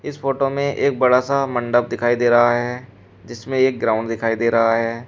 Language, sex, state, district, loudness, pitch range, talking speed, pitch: Hindi, male, Uttar Pradesh, Shamli, -18 LUFS, 115-130 Hz, 210 wpm, 120 Hz